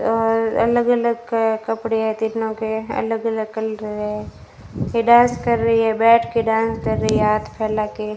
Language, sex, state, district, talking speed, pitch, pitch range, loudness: Hindi, female, Rajasthan, Bikaner, 170 wpm, 225 Hz, 220-230 Hz, -19 LUFS